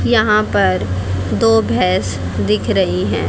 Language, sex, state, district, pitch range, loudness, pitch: Hindi, female, Haryana, Jhajjar, 95-110 Hz, -16 LUFS, 100 Hz